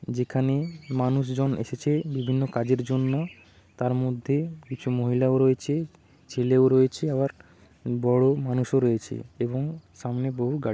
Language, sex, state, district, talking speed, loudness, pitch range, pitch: Bengali, male, West Bengal, Jhargram, 115 wpm, -26 LUFS, 125-135 Hz, 130 Hz